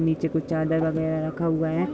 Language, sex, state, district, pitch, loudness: Hindi, female, Uttar Pradesh, Budaun, 160 Hz, -25 LUFS